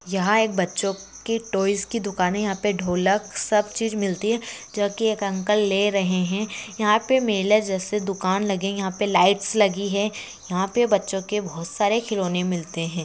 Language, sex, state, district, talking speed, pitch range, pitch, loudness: Hindi, female, West Bengal, Malda, 190 wpm, 190-210 Hz, 200 Hz, -23 LUFS